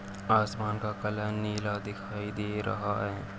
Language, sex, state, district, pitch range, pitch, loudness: Kumaoni, male, Uttarakhand, Uttarkashi, 100-105 Hz, 105 Hz, -32 LUFS